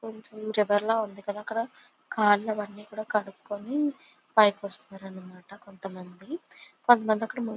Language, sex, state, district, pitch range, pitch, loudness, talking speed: Telugu, female, Andhra Pradesh, Visakhapatnam, 200-225 Hz, 210 Hz, -27 LUFS, 145 wpm